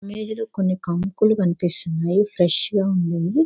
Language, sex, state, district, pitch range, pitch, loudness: Telugu, female, Andhra Pradesh, Visakhapatnam, 175-210 Hz, 185 Hz, -21 LUFS